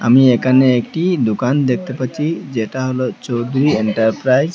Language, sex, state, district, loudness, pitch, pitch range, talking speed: Bengali, male, Assam, Hailakandi, -16 LUFS, 130 Hz, 120-135 Hz, 145 wpm